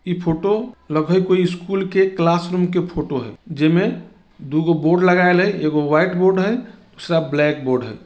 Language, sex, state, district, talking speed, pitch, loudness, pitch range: Bajjika, male, Bihar, Vaishali, 185 wpm, 175 Hz, -18 LUFS, 155-190 Hz